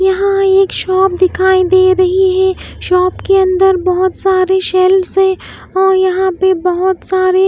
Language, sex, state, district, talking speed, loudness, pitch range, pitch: Hindi, female, Bihar, West Champaran, 155 wpm, -11 LUFS, 370-380 Hz, 375 Hz